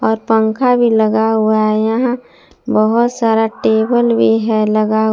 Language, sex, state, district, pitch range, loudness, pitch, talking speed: Hindi, female, Jharkhand, Palamu, 220-230 Hz, -14 LUFS, 220 Hz, 140 wpm